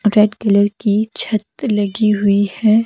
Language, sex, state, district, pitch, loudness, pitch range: Hindi, female, Himachal Pradesh, Shimla, 210 Hz, -16 LUFS, 205-215 Hz